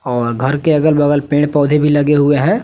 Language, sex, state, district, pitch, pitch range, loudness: Hindi, male, Bihar, West Champaran, 145 Hz, 145-150 Hz, -13 LUFS